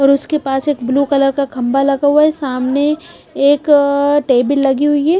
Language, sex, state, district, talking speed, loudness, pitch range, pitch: Hindi, female, Punjab, Pathankot, 195 wpm, -14 LUFS, 270-290 Hz, 280 Hz